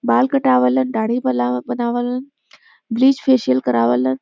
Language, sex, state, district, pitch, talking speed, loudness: Bhojpuri, female, Uttar Pradesh, Varanasi, 220 Hz, 115 wpm, -17 LUFS